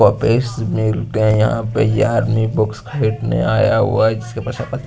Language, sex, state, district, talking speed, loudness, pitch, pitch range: Hindi, male, Chandigarh, Chandigarh, 160 wpm, -17 LUFS, 110 Hz, 110-115 Hz